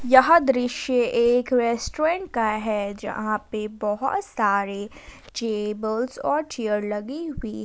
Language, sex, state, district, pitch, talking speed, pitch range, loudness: Hindi, female, Jharkhand, Ranchi, 235 Hz, 120 wpm, 210-260 Hz, -23 LUFS